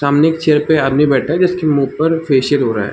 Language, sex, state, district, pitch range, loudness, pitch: Hindi, male, Chhattisgarh, Balrampur, 135-160 Hz, -14 LUFS, 150 Hz